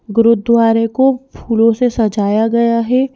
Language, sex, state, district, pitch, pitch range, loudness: Hindi, female, Madhya Pradesh, Bhopal, 230 Hz, 225-245 Hz, -13 LUFS